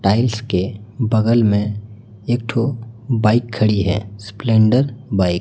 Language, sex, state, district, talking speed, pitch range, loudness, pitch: Hindi, male, Chhattisgarh, Raipur, 135 wpm, 105-120 Hz, -18 LUFS, 110 Hz